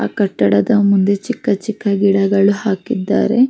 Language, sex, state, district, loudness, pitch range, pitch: Kannada, female, Karnataka, Mysore, -15 LUFS, 195-215 Hz, 200 Hz